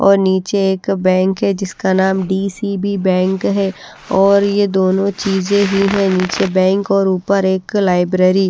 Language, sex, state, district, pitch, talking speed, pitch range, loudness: Hindi, female, Haryana, Rohtak, 195 Hz, 160 wpm, 190-200 Hz, -15 LUFS